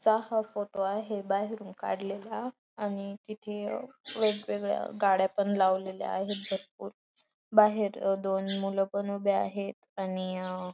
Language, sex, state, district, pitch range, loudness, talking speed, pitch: Marathi, female, Maharashtra, Dhule, 195-210 Hz, -31 LUFS, 115 wpm, 200 Hz